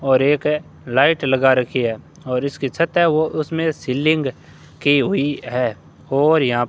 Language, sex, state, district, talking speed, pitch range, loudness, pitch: Hindi, male, Rajasthan, Bikaner, 180 wpm, 130-155 Hz, -19 LUFS, 140 Hz